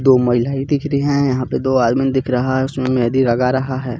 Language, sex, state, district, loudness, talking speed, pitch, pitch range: Hindi, male, Jharkhand, Garhwa, -17 LUFS, 255 wpm, 130 Hz, 125-135 Hz